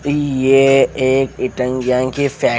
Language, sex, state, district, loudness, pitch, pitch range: Hindi, male, Odisha, Khordha, -15 LUFS, 130 Hz, 130-135 Hz